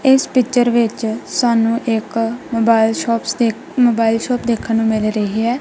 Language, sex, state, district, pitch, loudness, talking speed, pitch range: Punjabi, female, Punjab, Kapurthala, 230 Hz, -16 LUFS, 160 wpm, 225-240 Hz